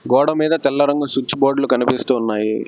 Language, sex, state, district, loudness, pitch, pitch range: Telugu, male, Telangana, Hyderabad, -17 LUFS, 135 Hz, 125-145 Hz